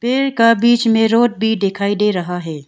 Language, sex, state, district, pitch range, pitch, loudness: Hindi, female, Arunachal Pradesh, Longding, 200-235 Hz, 220 Hz, -15 LUFS